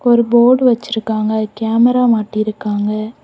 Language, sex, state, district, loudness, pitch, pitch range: Tamil, female, Tamil Nadu, Kanyakumari, -14 LUFS, 225 Hz, 215-240 Hz